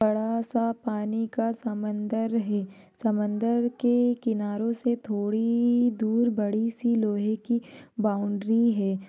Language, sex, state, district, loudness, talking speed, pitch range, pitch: Hindi, female, Maharashtra, Sindhudurg, -26 LUFS, 105 wpm, 210-235 Hz, 225 Hz